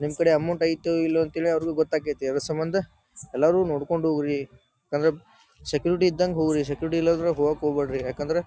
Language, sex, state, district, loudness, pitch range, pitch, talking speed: Kannada, male, Karnataka, Dharwad, -25 LUFS, 150-165 Hz, 160 Hz, 165 wpm